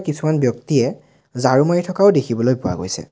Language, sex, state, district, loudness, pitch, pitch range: Assamese, male, Assam, Sonitpur, -18 LUFS, 135 Hz, 120-155 Hz